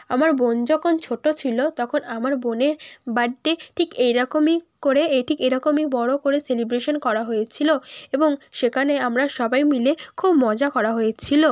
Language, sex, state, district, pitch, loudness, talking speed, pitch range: Bengali, female, West Bengal, Kolkata, 275 Hz, -21 LUFS, 150 wpm, 245-305 Hz